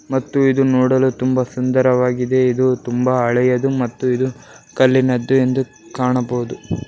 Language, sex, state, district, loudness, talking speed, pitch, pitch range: Kannada, male, Karnataka, Bellary, -17 LUFS, 120 wpm, 130 Hz, 125-130 Hz